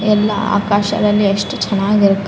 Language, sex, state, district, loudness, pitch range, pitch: Kannada, female, Karnataka, Raichur, -15 LUFS, 200-210 Hz, 205 Hz